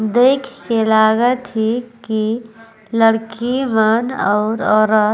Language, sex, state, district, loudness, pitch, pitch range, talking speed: Sadri, female, Chhattisgarh, Jashpur, -16 LUFS, 225 Hz, 220-240 Hz, 115 wpm